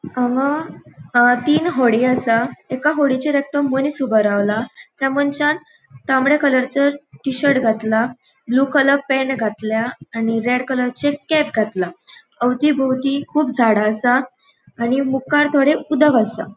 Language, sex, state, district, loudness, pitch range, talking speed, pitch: Konkani, female, Goa, North and South Goa, -18 LUFS, 235-285 Hz, 125 wpm, 265 Hz